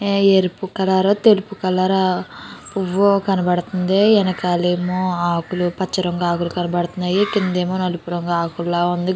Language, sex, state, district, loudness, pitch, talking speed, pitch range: Telugu, female, Andhra Pradesh, Chittoor, -18 LUFS, 185 Hz, 110 wpm, 175-195 Hz